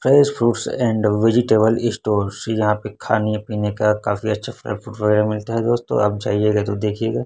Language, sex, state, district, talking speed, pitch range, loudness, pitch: Hindi, male, Chhattisgarh, Raipur, 180 wpm, 105-115 Hz, -19 LUFS, 105 Hz